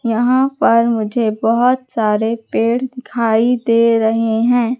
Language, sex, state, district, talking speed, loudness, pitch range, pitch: Hindi, female, Madhya Pradesh, Katni, 125 wpm, -15 LUFS, 225-245 Hz, 230 Hz